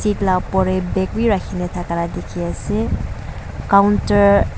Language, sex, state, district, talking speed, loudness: Nagamese, female, Nagaland, Dimapur, 155 wpm, -18 LUFS